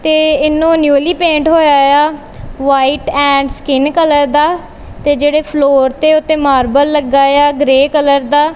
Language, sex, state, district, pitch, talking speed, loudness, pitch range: Punjabi, female, Punjab, Kapurthala, 290 Hz, 155 wpm, -11 LUFS, 280-310 Hz